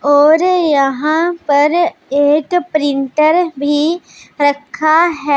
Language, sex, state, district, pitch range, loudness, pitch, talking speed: Hindi, female, Punjab, Pathankot, 285-335 Hz, -13 LUFS, 305 Hz, 90 wpm